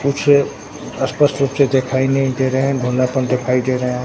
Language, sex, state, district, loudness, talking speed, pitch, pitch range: Hindi, male, Bihar, Katihar, -17 LUFS, 205 wpm, 130 Hz, 125-140 Hz